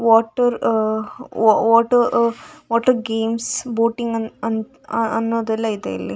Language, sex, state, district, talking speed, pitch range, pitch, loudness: Kannada, female, Karnataka, Dakshina Kannada, 125 wpm, 225-235 Hz, 230 Hz, -19 LUFS